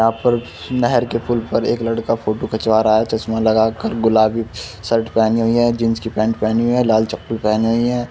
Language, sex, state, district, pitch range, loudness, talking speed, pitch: Hindi, male, Uttar Pradesh, Muzaffarnagar, 110-115 Hz, -17 LUFS, 230 wpm, 115 Hz